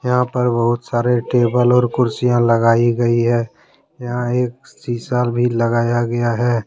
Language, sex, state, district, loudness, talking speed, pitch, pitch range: Hindi, male, Jharkhand, Deoghar, -17 LUFS, 155 wpm, 120 Hz, 120-125 Hz